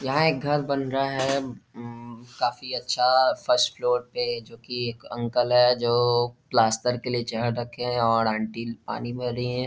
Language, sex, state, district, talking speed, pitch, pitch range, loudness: Hindi, male, Bihar, Jahanabad, 185 wpm, 125 Hz, 120-130 Hz, -25 LUFS